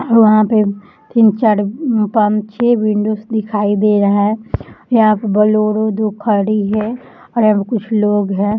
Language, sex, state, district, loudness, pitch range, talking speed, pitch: Hindi, female, Jharkhand, Jamtara, -14 LUFS, 210-220 Hz, 145 wpm, 215 Hz